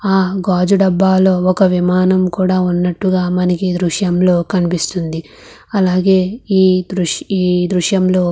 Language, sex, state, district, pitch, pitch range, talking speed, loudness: Telugu, female, Andhra Pradesh, Krishna, 185 Hz, 180-190 Hz, 145 wpm, -14 LUFS